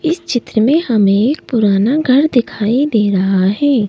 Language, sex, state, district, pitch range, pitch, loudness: Hindi, female, Madhya Pradesh, Bhopal, 205-285 Hz, 240 Hz, -13 LUFS